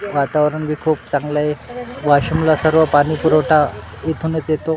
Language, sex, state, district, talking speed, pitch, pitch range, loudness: Marathi, male, Maharashtra, Washim, 125 wpm, 155 Hz, 150-160 Hz, -17 LUFS